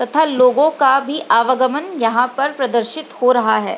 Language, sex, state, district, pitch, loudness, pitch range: Hindi, female, Bihar, Lakhisarai, 260 Hz, -15 LUFS, 245-290 Hz